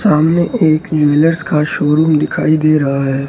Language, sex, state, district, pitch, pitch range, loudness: Hindi, male, Rajasthan, Bikaner, 155 Hz, 150-160 Hz, -13 LUFS